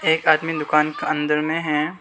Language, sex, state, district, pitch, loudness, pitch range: Hindi, male, Arunachal Pradesh, Lower Dibang Valley, 155 Hz, -20 LUFS, 150-160 Hz